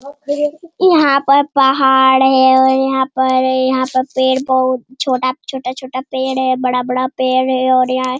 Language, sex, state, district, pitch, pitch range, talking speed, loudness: Hindi, female, Bihar, Jamui, 260 Hz, 255-270 Hz, 155 wpm, -14 LUFS